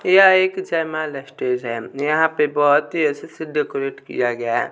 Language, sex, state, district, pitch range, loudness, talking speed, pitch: Hindi, male, Bihar, West Champaran, 135-160 Hz, -19 LUFS, 180 wpm, 150 Hz